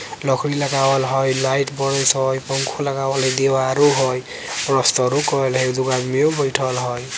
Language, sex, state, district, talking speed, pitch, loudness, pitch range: Bajjika, male, Bihar, Vaishali, 175 wpm, 135 Hz, -18 LUFS, 130-135 Hz